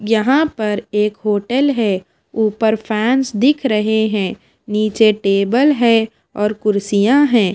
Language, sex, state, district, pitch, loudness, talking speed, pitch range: Hindi, female, Himachal Pradesh, Shimla, 220 Hz, -16 LUFS, 125 wpm, 210-235 Hz